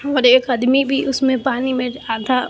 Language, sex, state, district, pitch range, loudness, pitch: Hindi, female, Bihar, Katihar, 250-270 Hz, -17 LUFS, 260 Hz